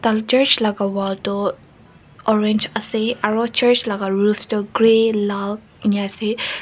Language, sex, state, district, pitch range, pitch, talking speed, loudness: Nagamese, female, Nagaland, Kohima, 200-225 Hz, 215 Hz, 135 wpm, -18 LUFS